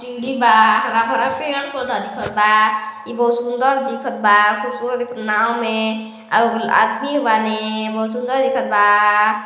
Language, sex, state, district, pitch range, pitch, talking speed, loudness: Hindi, female, Chhattisgarh, Balrampur, 215-245 Hz, 225 Hz, 145 wpm, -17 LUFS